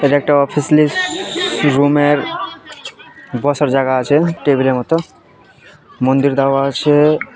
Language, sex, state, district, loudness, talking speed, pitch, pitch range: Bengali, male, West Bengal, Malda, -14 LUFS, 120 wpm, 145 Hz, 135-150 Hz